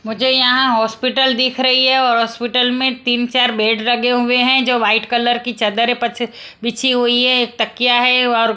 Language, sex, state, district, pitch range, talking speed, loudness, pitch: Hindi, female, Punjab, Kapurthala, 235-255 Hz, 190 wpm, -14 LUFS, 245 Hz